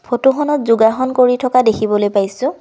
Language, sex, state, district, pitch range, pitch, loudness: Assamese, female, Assam, Kamrup Metropolitan, 220-260 Hz, 250 Hz, -14 LUFS